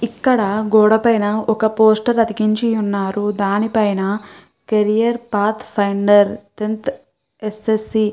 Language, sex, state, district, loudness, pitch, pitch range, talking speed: Telugu, female, Andhra Pradesh, Chittoor, -17 LUFS, 215 Hz, 205-220 Hz, 120 wpm